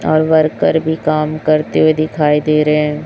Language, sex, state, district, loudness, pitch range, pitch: Hindi, male, Chhattisgarh, Raipur, -14 LUFS, 150-155 Hz, 155 Hz